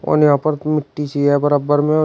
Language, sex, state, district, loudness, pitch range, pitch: Hindi, male, Uttar Pradesh, Shamli, -16 LUFS, 145-155 Hz, 145 Hz